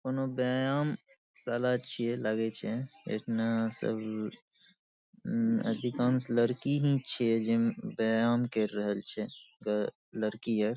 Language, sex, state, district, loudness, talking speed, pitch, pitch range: Maithili, male, Bihar, Saharsa, -32 LUFS, 110 wpm, 120 Hz, 110-135 Hz